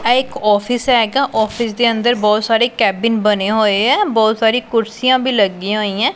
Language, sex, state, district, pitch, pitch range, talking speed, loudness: Punjabi, female, Punjab, Pathankot, 225 Hz, 215-245 Hz, 195 wpm, -15 LUFS